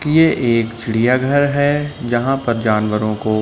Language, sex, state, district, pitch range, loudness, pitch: Hindi, male, Uttar Pradesh, Budaun, 110-145 Hz, -16 LUFS, 120 Hz